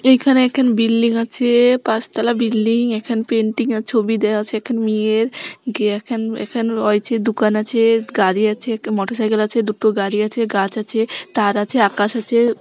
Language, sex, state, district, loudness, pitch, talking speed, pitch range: Bengali, female, West Bengal, North 24 Parganas, -17 LUFS, 225 Hz, 155 wpm, 215-235 Hz